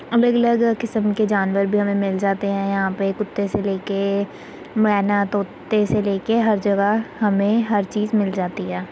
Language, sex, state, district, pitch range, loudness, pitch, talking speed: Hindi, female, Uttar Pradesh, Muzaffarnagar, 195-215 Hz, -20 LUFS, 205 Hz, 190 wpm